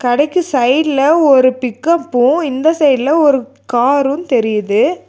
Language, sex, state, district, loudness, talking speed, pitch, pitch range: Tamil, female, Tamil Nadu, Nilgiris, -13 LUFS, 105 wpm, 275 Hz, 250-310 Hz